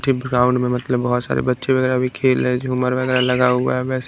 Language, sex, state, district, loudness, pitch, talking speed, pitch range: Hindi, male, Bihar, Kaimur, -18 LUFS, 125 Hz, 235 wpm, 125-130 Hz